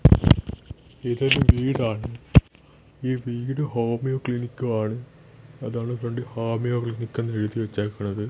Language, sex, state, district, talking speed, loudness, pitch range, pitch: Malayalam, male, Kerala, Thiruvananthapuram, 100 wpm, -24 LUFS, 115-130 Hz, 120 Hz